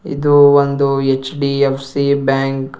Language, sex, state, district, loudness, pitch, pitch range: Kannada, male, Karnataka, Bangalore, -14 LUFS, 140 Hz, 135-140 Hz